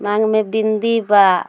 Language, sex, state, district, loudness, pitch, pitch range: Bhojpuri, female, Bihar, Muzaffarpur, -16 LUFS, 215 Hz, 205-220 Hz